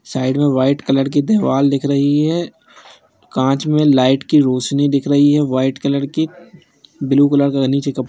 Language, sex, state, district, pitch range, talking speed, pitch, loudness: Hindi, male, Bihar, East Champaran, 135-145 Hz, 185 wpm, 140 Hz, -15 LUFS